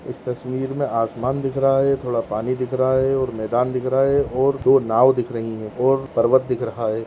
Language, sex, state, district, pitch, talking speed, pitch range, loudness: Hindi, male, Bihar, Jahanabad, 130 Hz, 240 wpm, 120-135 Hz, -20 LUFS